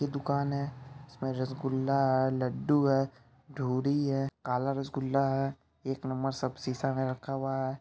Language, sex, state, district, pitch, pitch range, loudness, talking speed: Hindi, male, Bihar, Supaul, 135 Hz, 130-140 Hz, -31 LUFS, 175 wpm